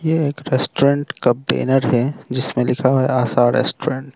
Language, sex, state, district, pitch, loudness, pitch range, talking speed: Hindi, male, Arunachal Pradesh, Lower Dibang Valley, 130 Hz, -18 LUFS, 125-140 Hz, 190 wpm